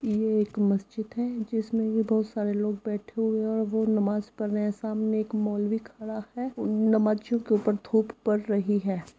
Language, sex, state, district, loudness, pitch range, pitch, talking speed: Hindi, female, Uttar Pradesh, Jyotiba Phule Nagar, -27 LUFS, 210-220 Hz, 215 Hz, 195 wpm